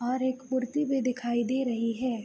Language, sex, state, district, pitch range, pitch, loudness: Hindi, female, Bihar, Begusarai, 240-260 Hz, 255 Hz, -29 LUFS